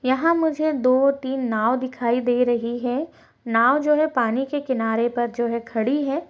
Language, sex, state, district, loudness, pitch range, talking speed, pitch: Hindi, female, Uttar Pradesh, Budaun, -21 LUFS, 235-280 Hz, 190 wpm, 255 Hz